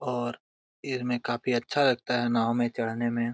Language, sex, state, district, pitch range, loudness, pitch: Hindi, male, Jharkhand, Jamtara, 120-125 Hz, -28 LUFS, 120 Hz